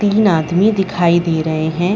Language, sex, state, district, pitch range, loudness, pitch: Hindi, female, Chhattisgarh, Rajnandgaon, 160-200 Hz, -15 LUFS, 175 Hz